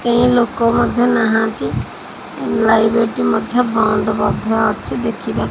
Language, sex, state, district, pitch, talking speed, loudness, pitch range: Odia, female, Odisha, Khordha, 225 Hz, 120 wpm, -16 LUFS, 220-240 Hz